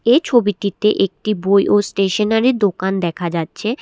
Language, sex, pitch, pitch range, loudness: Bengali, female, 205 Hz, 190-220 Hz, -17 LUFS